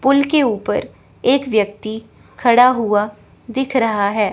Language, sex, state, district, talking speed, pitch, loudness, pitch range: Hindi, female, Chandigarh, Chandigarh, 140 wpm, 235 Hz, -17 LUFS, 210-260 Hz